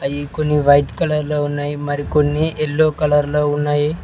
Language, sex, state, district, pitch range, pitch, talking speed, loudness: Telugu, male, Telangana, Mahabubabad, 145-150 Hz, 150 Hz, 165 wpm, -17 LUFS